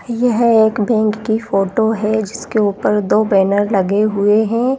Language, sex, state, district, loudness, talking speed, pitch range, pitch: Hindi, female, Chhattisgarh, Kabirdham, -15 LUFS, 150 wpm, 205-225 Hz, 215 Hz